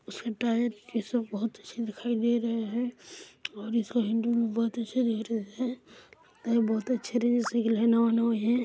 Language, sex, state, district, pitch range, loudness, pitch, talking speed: Hindi, male, Chhattisgarh, Bilaspur, 225-240 Hz, -29 LUFS, 230 Hz, 185 wpm